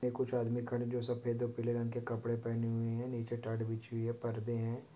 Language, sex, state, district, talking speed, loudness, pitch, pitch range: Hindi, male, Chhattisgarh, Korba, 215 wpm, -38 LUFS, 120 Hz, 115-120 Hz